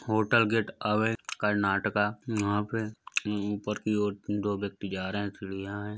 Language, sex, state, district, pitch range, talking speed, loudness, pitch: Hindi, male, Uttar Pradesh, Budaun, 100-110 Hz, 180 wpm, -30 LUFS, 105 Hz